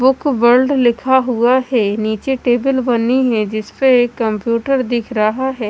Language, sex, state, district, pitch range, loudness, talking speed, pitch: Hindi, female, Chandigarh, Chandigarh, 230-260 Hz, -15 LUFS, 170 wpm, 245 Hz